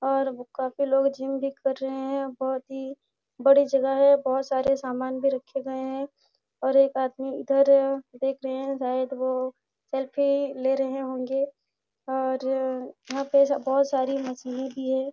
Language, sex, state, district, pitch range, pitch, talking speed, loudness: Hindi, female, Bihar, Araria, 260-275 Hz, 270 Hz, 160 wpm, -26 LUFS